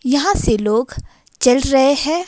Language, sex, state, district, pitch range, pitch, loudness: Hindi, female, Himachal Pradesh, Shimla, 250-285 Hz, 270 Hz, -15 LUFS